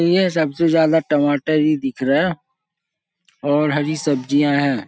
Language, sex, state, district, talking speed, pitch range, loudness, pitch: Hindi, male, Bihar, Saharsa, 150 wpm, 145-170 Hz, -18 LUFS, 155 Hz